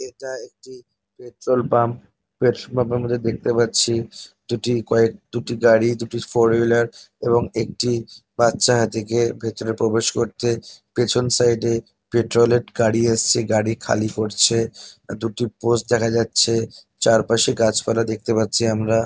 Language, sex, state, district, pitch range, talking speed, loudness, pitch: Bengali, male, West Bengal, North 24 Parganas, 115-120 Hz, 150 wpm, -20 LUFS, 115 Hz